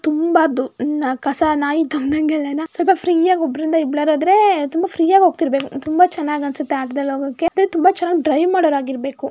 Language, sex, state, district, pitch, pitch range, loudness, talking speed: Kannada, female, Karnataka, Mysore, 310 Hz, 285-345 Hz, -17 LUFS, 110 wpm